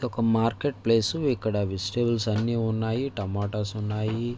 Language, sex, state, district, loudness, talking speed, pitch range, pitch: Telugu, male, Andhra Pradesh, Visakhapatnam, -26 LUFS, 135 wpm, 105-120 Hz, 115 Hz